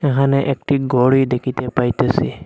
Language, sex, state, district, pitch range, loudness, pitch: Bengali, male, Assam, Hailakandi, 125-140 Hz, -17 LUFS, 135 Hz